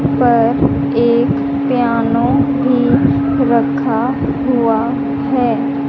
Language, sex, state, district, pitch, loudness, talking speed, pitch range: Hindi, female, Haryana, Rohtak, 250 Hz, -14 LUFS, 70 wpm, 235-275 Hz